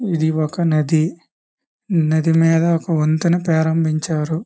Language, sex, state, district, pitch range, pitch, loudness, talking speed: Telugu, male, Andhra Pradesh, Visakhapatnam, 155-170 Hz, 160 Hz, -18 LUFS, 105 wpm